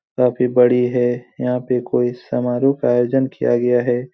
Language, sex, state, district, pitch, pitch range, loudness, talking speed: Hindi, male, Bihar, Supaul, 125 Hz, 120-125 Hz, -18 LUFS, 175 wpm